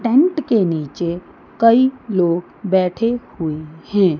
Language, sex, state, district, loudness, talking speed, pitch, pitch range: Hindi, female, Chandigarh, Chandigarh, -18 LUFS, 115 wpm, 190 Hz, 170-230 Hz